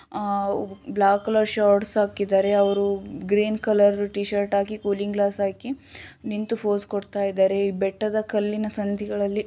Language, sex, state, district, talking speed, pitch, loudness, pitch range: Kannada, female, Karnataka, Shimoga, 125 wpm, 205 Hz, -23 LUFS, 200-210 Hz